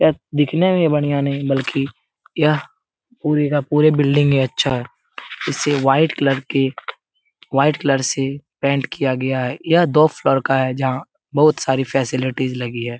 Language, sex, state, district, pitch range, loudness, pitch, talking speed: Hindi, male, Bihar, Saran, 130-150 Hz, -18 LUFS, 140 Hz, 160 wpm